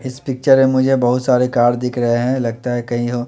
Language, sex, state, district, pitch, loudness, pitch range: Hindi, male, Chandigarh, Chandigarh, 125 Hz, -16 LUFS, 120-130 Hz